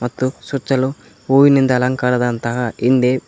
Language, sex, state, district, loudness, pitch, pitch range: Kannada, male, Karnataka, Koppal, -16 LUFS, 130 Hz, 125-135 Hz